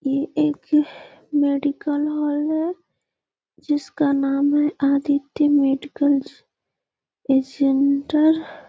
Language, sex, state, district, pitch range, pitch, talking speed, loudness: Hindi, female, Bihar, Gaya, 280-300 Hz, 290 Hz, 75 wpm, -21 LUFS